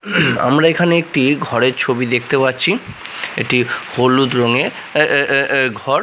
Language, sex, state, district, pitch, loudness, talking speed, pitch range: Bengali, male, Odisha, Nuapada, 135 Hz, -15 LUFS, 150 wpm, 125-150 Hz